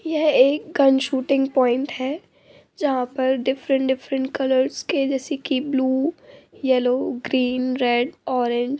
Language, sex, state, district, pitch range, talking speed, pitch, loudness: Hindi, female, Uttar Pradesh, Budaun, 255-275 Hz, 130 wpm, 265 Hz, -21 LUFS